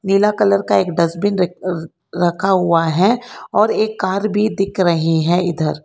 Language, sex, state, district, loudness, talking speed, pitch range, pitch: Hindi, female, Karnataka, Bangalore, -17 LUFS, 165 wpm, 165-200 Hz, 180 Hz